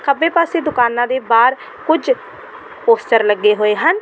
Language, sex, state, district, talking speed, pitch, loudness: Punjabi, female, Delhi, New Delhi, 150 wpm, 310 Hz, -15 LUFS